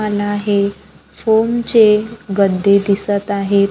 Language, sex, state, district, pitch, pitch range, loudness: Marathi, female, Maharashtra, Gondia, 205 Hz, 200-215 Hz, -15 LUFS